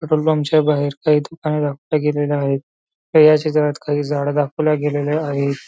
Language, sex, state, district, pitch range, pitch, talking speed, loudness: Marathi, male, Maharashtra, Nagpur, 145-155 Hz, 150 Hz, 180 wpm, -18 LUFS